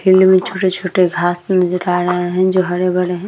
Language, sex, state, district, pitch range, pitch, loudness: Hindi, female, Bihar, Vaishali, 180-185 Hz, 180 Hz, -15 LUFS